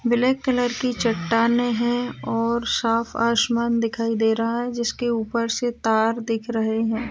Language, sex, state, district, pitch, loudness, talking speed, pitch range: Hindi, female, Bihar, Lakhisarai, 235 Hz, -22 LUFS, 160 wpm, 230-240 Hz